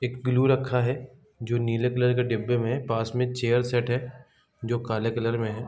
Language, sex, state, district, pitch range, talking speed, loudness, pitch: Hindi, male, Bihar, East Champaran, 115-125 Hz, 210 wpm, -26 LUFS, 120 Hz